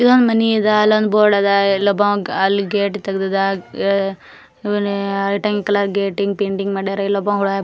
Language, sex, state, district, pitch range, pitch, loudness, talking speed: Kannada, female, Karnataka, Gulbarga, 195-205 Hz, 200 Hz, -17 LUFS, 110 wpm